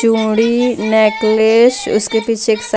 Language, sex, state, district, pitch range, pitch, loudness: Hindi, female, Jharkhand, Deoghar, 220-230 Hz, 225 Hz, -13 LUFS